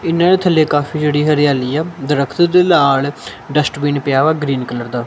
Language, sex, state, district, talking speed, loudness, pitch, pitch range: Punjabi, male, Punjab, Kapurthala, 175 wpm, -14 LUFS, 145 Hz, 140-160 Hz